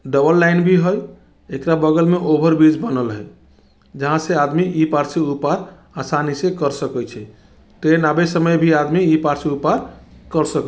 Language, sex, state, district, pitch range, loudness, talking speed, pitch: Bajjika, male, Bihar, Vaishali, 135-170 Hz, -17 LUFS, 195 wpm, 155 Hz